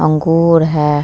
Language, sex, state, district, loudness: Hindi, female, Bihar, Vaishali, -12 LUFS